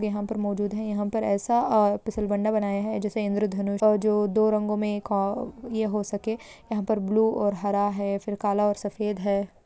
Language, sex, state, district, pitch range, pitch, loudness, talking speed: Hindi, female, Maharashtra, Pune, 205-215 Hz, 210 Hz, -26 LUFS, 205 wpm